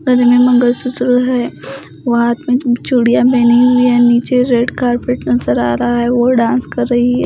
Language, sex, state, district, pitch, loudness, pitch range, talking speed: Hindi, female, Bihar, West Champaran, 245 Hz, -12 LUFS, 240-250 Hz, 200 wpm